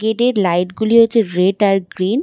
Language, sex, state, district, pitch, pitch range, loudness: Bengali, female, West Bengal, Dakshin Dinajpur, 205 Hz, 185-230 Hz, -15 LUFS